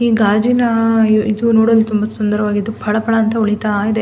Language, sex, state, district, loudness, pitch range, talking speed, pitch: Kannada, female, Karnataka, Mysore, -14 LUFS, 210-225 Hz, 165 wpm, 220 Hz